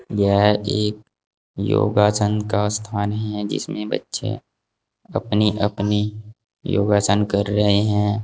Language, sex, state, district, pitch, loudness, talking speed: Hindi, male, Uttar Pradesh, Saharanpur, 105 Hz, -20 LUFS, 100 wpm